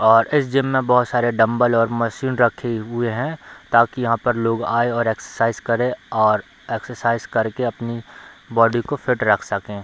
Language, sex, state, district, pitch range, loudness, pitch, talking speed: Hindi, male, Bihar, Darbhanga, 115-125 Hz, -20 LUFS, 115 Hz, 175 wpm